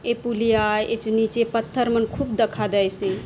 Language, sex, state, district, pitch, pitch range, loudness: Halbi, female, Chhattisgarh, Bastar, 225 Hz, 215-235 Hz, -22 LUFS